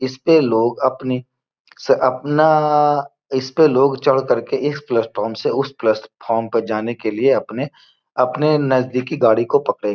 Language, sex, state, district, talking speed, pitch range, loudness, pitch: Hindi, male, Bihar, Gopalganj, 165 wpm, 115-145 Hz, -18 LUFS, 130 Hz